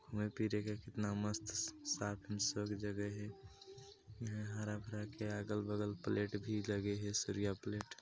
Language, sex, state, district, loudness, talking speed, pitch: Hindi, male, Chhattisgarh, Balrampur, -42 LUFS, 140 wpm, 105 Hz